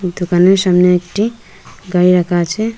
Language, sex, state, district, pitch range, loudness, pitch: Bengali, female, Assam, Hailakandi, 180-200 Hz, -13 LUFS, 180 Hz